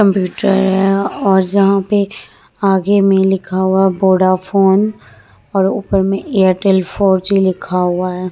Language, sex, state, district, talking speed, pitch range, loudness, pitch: Hindi, female, Bihar, Vaishali, 145 wpm, 185-195 Hz, -14 LUFS, 190 Hz